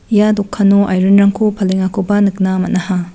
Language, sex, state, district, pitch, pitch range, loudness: Garo, female, Meghalaya, West Garo Hills, 200 Hz, 190-205 Hz, -13 LUFS